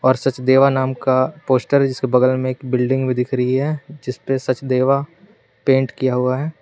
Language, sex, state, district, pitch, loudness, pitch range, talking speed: Hindi, male, Jharkhand, Garhwa, 130 Hz, -18 LUFS, 130-135 Hz, 180 wpm